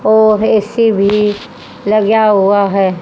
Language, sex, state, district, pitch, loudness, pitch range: Hindi, female, Haryana, Charkhi Dadri, 210 Hz, -11 LUFS, 200-220 Hz